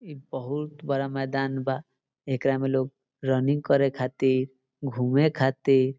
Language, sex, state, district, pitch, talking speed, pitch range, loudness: Bhojpuri, male, Bihar, Saran, 135 Hz, 140 wpm, 130-140 Hz, -26 LUFS